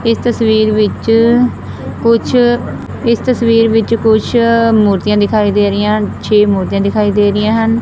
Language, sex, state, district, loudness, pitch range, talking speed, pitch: Punjabi, female, Punjab, Fazilka, -12 LUFS, 210-230 Hz, 145 wpm, 220 Hz